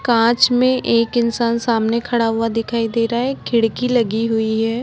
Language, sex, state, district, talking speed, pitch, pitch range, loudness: Hindi, female, Uttar Pradesh, Budaun, 185 wpm, 230 Hz, 230-240 Hz, -17 LUFS